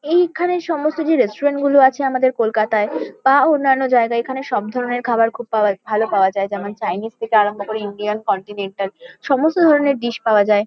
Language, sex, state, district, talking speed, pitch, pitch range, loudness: Bengali, female, West Bengal, Kolkata, 180 wpm, 235 Hz, 210-275 Hz, -18 LUFS